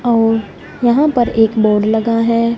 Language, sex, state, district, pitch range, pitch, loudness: Hindi, female, Punjab, Fazilka, 220-240 Hz, 230 Hz, -14 LUFS